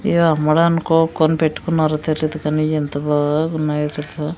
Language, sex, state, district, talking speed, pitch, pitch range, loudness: Telugu, female, Andhra Pradesh, Sri Satya Sai, 80 wpm, 155 Hz, 150-160 Hz, -18 LUFS